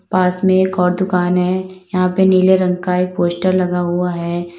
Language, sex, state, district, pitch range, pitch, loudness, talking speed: Hindi, female, Uttar Pradesh, Lalitpur, 180-185 Hz, 180 Hz, -16 LUFS, 210 wpm